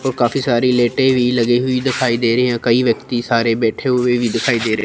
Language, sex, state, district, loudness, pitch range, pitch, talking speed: Hindi, female, Chandigarh, Chandigarh, -16 LUFS, 115-125 Hz, 120 Hz, 250 wpm